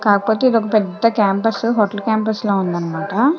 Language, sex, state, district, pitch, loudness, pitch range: Telugu, female, Andhra Pradesh, Chittoor, 215 Hz, -17 LUFS, 200-225 Hz